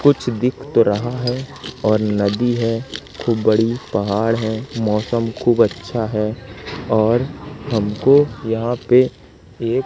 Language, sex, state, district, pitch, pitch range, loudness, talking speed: Hindi, male, Madhya Pradesh, Katni, 115 Hz, 110-125 Hz, -18 LUFS, 130 wpm